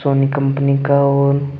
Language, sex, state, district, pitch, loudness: Hindi, male, Jharkhand, Deoghar, 140 Hz, -15 LUFS